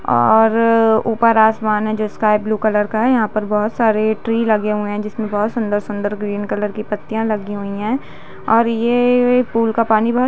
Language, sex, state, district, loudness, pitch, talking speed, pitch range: Hindi, female, Chhattisgarh, Bilaspur, -17 LUFS, 220 Hz, 205 wpm, 210-230 Hz